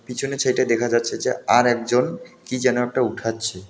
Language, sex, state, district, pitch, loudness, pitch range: Bengali, male, West Bengal, Alipurduar, 120 Hz, -21 LUFS, 115-130 Hz